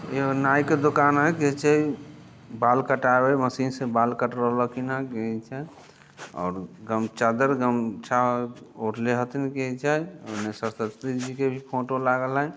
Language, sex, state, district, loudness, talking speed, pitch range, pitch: Hindi, male, Bihar, Muzaffarpur, -25 LUFS, 120 wpm, 120-135 Hz, 130 Hz